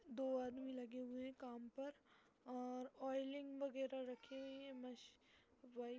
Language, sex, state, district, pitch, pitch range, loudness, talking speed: Hindi, female, Uttar Pradesh, Jalaun, 260 Hz, 250-270 Hz, -50 LUFS, 150 wpm